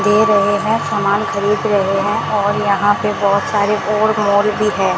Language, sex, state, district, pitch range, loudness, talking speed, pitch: Hindi, female, Rajasthan, Bikaner, 200-210 Hz, -15 LUFS, 195 wpm, 205 Hz